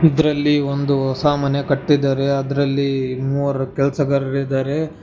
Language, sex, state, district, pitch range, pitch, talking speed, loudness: Kannada, male, Karnataka, Bangalore, 135-145 Hz, 140 Hz, 105 wpm, -19 LUFS